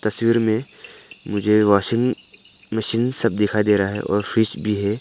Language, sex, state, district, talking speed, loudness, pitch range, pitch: Hindi, male, Arunachal Pradesh, Papum Pare, 165 wpm, -20 LUFS, 105-115 Hz, 105 Hz